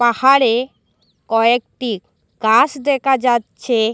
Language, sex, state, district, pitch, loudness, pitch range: Bengali, female, Assam, Hailakandi, 245 Hz, -16 LUFS, 230-265 Hz